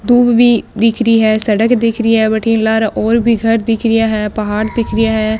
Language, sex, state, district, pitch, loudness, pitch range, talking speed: Marwari, female, Rajasthan, Nagaur, 225 Hz, -13 LUFS, 220-230 Hz, 235 wpm